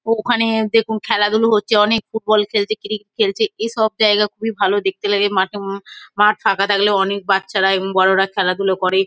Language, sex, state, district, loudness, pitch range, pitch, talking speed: Bengali, female, West Bengal, Kolkata, -17 LUFS, 195-225 Hz, 210 Hz, 170 wpm